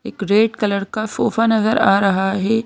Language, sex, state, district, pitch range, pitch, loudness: Hindi, female, Madhya Pradesh, Bhopal, 200-225 Hz, 215 Hz, -17 LUFS